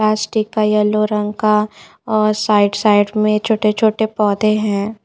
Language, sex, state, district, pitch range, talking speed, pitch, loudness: Hindi, female, Chandigarh, Chandigarh, 210-215 Hz, 155 wpm, 215 Hz, -16 LUFS